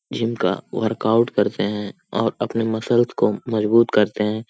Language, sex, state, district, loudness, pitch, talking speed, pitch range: Hindi, male, Bihar, Jamui, -20 LUFS, 110 Hz, 175 wpm, 105-115 Hz